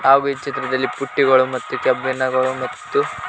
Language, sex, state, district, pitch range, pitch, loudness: Kannada, male, Karnataka, Koppal, 130-135 Hz, 130 Hz, -19 LUFS